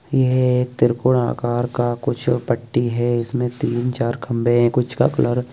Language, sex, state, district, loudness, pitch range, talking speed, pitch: Bhojpuri, male, Bihar, Saran, -19 LUFS, 120-125 Hz, 185 wpm, 120 Hz